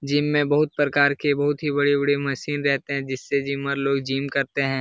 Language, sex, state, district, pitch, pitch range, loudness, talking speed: Hindi, male, Uttar Pradesh, Jalaun, 140 Hz, 140-145 Hz, -22 LUFS, 210 wpm